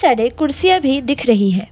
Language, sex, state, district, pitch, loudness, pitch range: Hindi, female, Assam, Kamrup Metropolitan, 270 Hz, -15 LUFS, 230-305 Hz